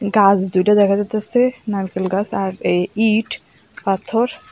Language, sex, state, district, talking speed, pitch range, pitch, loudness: Bengali, female, Tripura, West Tripura, 135 wpm, 195-220 Hz, 205 Hz, -18 LUFS